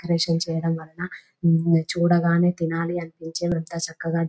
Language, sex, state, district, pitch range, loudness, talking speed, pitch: Telugu, female, Telangana, Nalgonda, 165-170 Hz, -23 LUFS, 125 wpm, 165 Hz